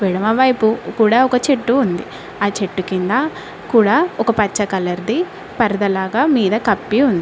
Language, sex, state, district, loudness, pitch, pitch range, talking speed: Telugu, female, Telangana, Mahabubabad, -16 LUFS, 220 Hz, 200-260 Hz, 165 wpm